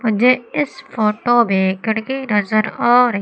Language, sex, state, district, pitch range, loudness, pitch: Hindi, female, Madhya Pradesh, Umaria, 210-250 Hz, -17 LUFS, 225 Hz